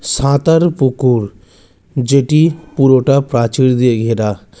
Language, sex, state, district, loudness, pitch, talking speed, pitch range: Bengali, male, West Bengal, Jalpaiguri, -13 LUFS, 130 Hz, 90 wpm, 110-140 Hz